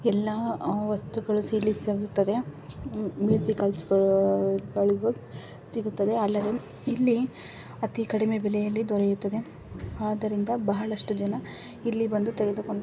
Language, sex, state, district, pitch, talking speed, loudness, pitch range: Kannada, female, Karnataka, Bijapur, 210 Hz, 100 wpm, -27 LUFS, 200-220 Hz